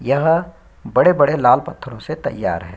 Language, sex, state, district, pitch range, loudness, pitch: Hindi, male, Bihar, Bhagalpur, 120-165 Hz, -17 LUFS, 145 Hz